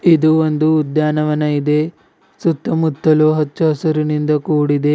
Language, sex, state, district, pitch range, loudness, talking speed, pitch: Kannada, male, Karnataka, Bidar, 150-155 Hz, -16 LUFS, 85 wpm, 155 Hz